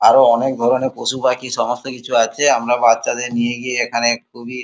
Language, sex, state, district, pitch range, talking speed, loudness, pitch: Bengali, male, West Bengal, Kolkata, 120-130 Hz, 165 wpm, -17 LUFS, 120 Hz